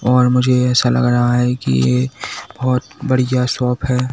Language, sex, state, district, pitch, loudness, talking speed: Hindi, male, Uttar Pradesh, Saharanpur, 125 Hz, -16 LUFS, 175 wpm